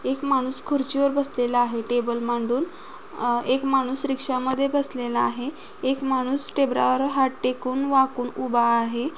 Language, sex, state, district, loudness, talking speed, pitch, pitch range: Marathi, female, Maharashtra, Solapur, -24 LUFS, 150 wpm, 260 Hz, 245-275 Hz